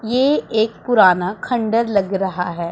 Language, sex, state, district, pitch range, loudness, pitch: Hindi, female, Punjab, Pathankot, 180-235 Hz, -17 LUFS, 220 Hz